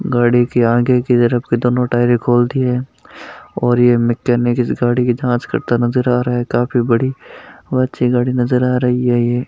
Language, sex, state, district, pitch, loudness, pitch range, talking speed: Hindi, male, Rajasthan, Nagaur, 120 Hz, -15 LUFS, 120-125 Hz, 205 wpm